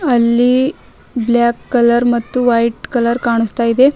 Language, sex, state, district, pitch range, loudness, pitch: Kannada, female, Karnataka, Bidar, 235-250 Hz, -14 LUFS, 240 Hz